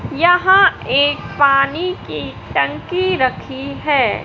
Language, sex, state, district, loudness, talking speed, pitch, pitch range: Hindi, male, Madhya Pradesh, Katni, -16 LUFS, 100 wpm, 290 Hz, 275-365 Hz